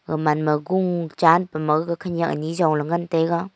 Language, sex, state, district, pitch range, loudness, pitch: Wancho, female, Arunachal Pradesh, Longding, 155-170 Hz, -21 LUFS, 165 Hz